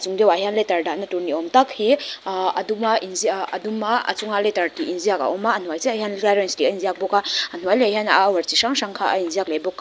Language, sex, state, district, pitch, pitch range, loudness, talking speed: Mizo, female, Mizoram, Aizawl, 210 Hz, 190-230 Hz, -21 LUFS, 305 wpm